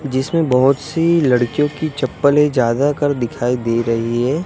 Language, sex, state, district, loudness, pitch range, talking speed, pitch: Hindi, male, Gujarat, Gandhinagar, -16 LUFS, 120-150 Hz, 150 wpm, 135 Hz